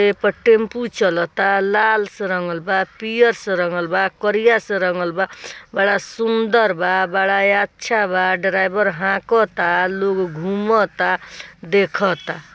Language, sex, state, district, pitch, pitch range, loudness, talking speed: Bhojpuri, female, Bihar, East Champaran, 195 Hz, 185-210 Hz, -18 LUFS, 125 wpm